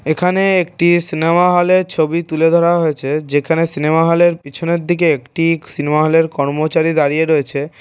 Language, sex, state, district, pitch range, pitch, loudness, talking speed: Bengali, male, West Bengal, North 24 Parganas, 155-170 Hz, 165 Hz, -15 LUFS, 145 wpm